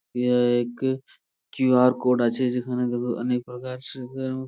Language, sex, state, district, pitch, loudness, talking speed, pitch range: Bengali, male, West Bengal, Purulia, 125 Hz, -24 LUFS, 145 wpm, 125-130 Hz